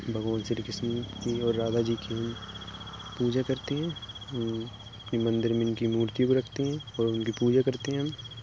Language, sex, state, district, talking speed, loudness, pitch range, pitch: Hindi, male, Uttar Pradesh, Jalaun, 190 wpm, -30 LUFS, 115-125 Hz, 115 Hz